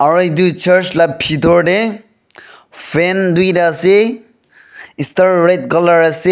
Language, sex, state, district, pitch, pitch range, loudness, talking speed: Nagamese, male, Nagaland, Dimapur, 180 Hz, 165-185 Hz, -12 LUFS, 125 wpm